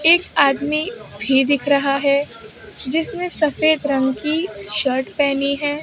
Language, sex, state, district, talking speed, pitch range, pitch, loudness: Hindi, male, Maharashtra, Mumbai Suburban, 135 wpm, 275-305 Hz, 285 Hz, -18 LUFS